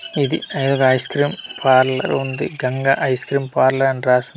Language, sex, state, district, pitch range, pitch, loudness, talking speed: Telugu, male, Andhra Pradesh, Manyam, 130-140 Hz, 135 Hz, -17 LUFS, 190 wpm